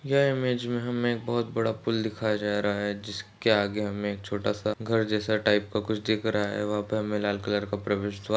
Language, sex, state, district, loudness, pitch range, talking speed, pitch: Hindi, male, Maharashtra, Solapur, -28 LUFS, 105-115 Hz, 215 wpm, 105 Hz